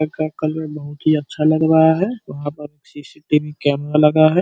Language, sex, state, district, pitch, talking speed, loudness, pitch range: Hindi, male, Uttar Pradesh, Ghazipur, 155 Hz, 190 wpm, -18 LUFS, 150-155 Hz